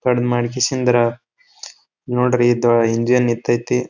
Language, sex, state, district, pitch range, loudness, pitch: Kannada, male, Karnataka, Bijapur, 120-125 Hz, -17 LUFS, 120 Hz